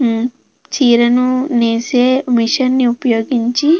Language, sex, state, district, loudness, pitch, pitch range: Telugu, female, Andhra Pradesh, Krishna, -14 LUFS, 245 Hz, 235-255 Hz